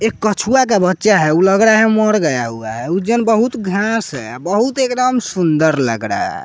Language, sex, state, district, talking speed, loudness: Hindi, male, Bihar, West Champaran, 215 wpm, -15 LUFS